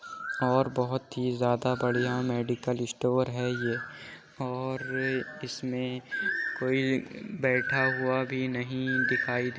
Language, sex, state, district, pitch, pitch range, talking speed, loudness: Hindi, male, Uttar Pradesh, Jyotiba Phule Nagar, 125 Hz, 125-130 Hz, 120 wpm, -29 LUFS